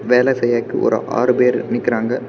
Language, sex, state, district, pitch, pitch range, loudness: Tamil, male, Tamil Nadu, Kanyakumari, 125 Hz, 120-125 Hz, -17 LUFS